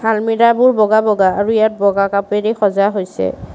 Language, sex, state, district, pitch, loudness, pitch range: Assamese, female, Assam, Sonitpur, 210 Hz, -14 LUFS, 200-220 Hz